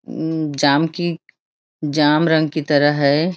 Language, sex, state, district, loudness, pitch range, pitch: Hindi, female, Chhattisgarh, Raigarh, -17 LUFS, 145-160 Hz, 155 Hz